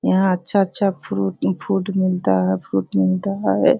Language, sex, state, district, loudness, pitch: Hindi, female, Bihar, Sitamarhi, -20 LUFS, 180 Hz